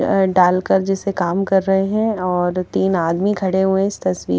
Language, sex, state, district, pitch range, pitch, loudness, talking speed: Hindi, female, Haryana, Charkhi Dadri, 180-195 Hz, 190 Hz, -18 LUFS, 205 wpm